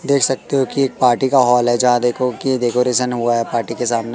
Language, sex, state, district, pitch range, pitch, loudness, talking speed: Hindi, male, Madhya Pradesh, Katni, 120-130 Hz, 125 Hz, -16 LUFS, 260 wpm